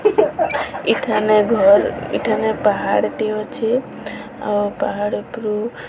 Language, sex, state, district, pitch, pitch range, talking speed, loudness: Odia, female, Odisha, Sambalpur, 215 Hz, 210-245 Hz, 100 wpm, -18 LUFS